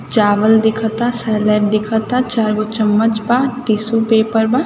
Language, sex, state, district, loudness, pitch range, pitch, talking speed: Hindi, female, Bihar, East Champaran, -15 LUFS, 215-230 Hz, 220 Hz, 155 wpm